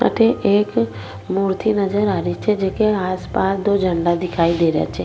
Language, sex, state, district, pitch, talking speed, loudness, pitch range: Rajasthani, female, Rajasthan, Nagaur, 190 Hz, 190 wpm, -19 LUFS, 170-205 Hz